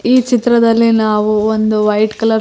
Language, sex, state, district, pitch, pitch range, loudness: Kannada, female, Karnataka, Koppal, 220 Hz, 215-230 Hz, -12 LUFS